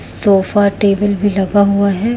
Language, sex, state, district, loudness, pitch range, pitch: Hindi, female, Chhattisgarh, Raipur, -13 LUFS, 195-205 Hz, 200 Hz